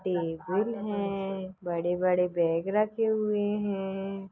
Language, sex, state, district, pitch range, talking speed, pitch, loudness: Hindi, female, Uttar Pradesh, Deoria, 180-205 Hz, 95 wpm, 195 Hz, -29 LUFS